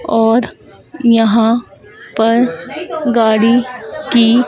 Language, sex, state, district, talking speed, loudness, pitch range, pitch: Hindi, female, Madhya Pradesh, Dhar, 65 wpm, -13 LUFS, 225-250 Hz, 235 Hz